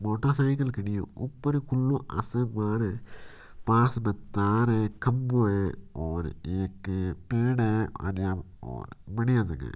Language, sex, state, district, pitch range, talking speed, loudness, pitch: Marwari, male, Rajasthan, Nagaur, 95-125 Hz, 140 wpm, -28 LUFS, 110 Hz